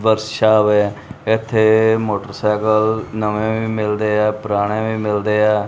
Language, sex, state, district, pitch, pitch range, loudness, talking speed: Punjabi, male, Punjab, Kapurthala, 110 Hz, 105-110 Hz, -17 LUFS, 125 wpm